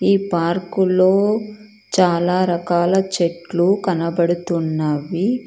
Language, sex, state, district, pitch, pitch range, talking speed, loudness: Telugu, female, Karnataka, Bangalore, 180 Hz, 170-195 Hz, 65 wpm, -18 LUFS